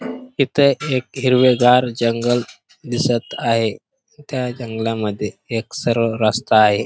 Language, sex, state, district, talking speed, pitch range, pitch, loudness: Marathi, male, Maharashtra, Pune, 105 wpm, 115-135 Hz, 120 Hz, -18 LUFS